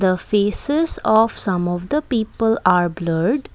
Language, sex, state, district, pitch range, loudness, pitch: English, female, Assam, Kamrup Metropolitan, 180-235 Hz, -18 LUFS, 210 Hz